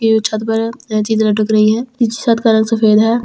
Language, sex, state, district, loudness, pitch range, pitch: Hindi, female, Delhi, New Delhi, -14 LUFS, 215-230 Hz, 220 Hz